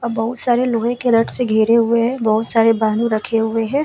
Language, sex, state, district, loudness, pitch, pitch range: Hindi, female, Uttar Pradesh, Hamirpur, -16 LUFS, 230 Hz, 225-240 Hz